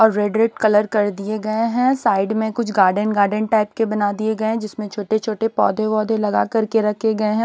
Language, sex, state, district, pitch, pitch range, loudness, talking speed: Hindi, male, Odisha, Nuapada, 215 Hz, 210-220 Hz, -19 LUFS, 210 wpm